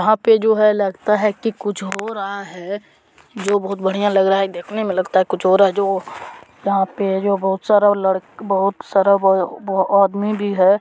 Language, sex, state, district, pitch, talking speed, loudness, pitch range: Hindi, male, Bihar, Araria, 200 Hz, 195 wpm, -18 LUFS, 190-205 Hz